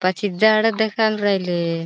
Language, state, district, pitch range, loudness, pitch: Bhili, Maharashtra, Dhule, 180-220 Hz, -19 LUFS, 205 Hz